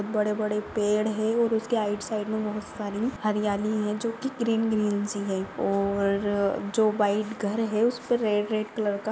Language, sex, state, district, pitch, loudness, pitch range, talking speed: Hindi, female, Maharashtra, Dhule, 215 Hz, -27 LUFS, 205-220 Hz, 185 wpm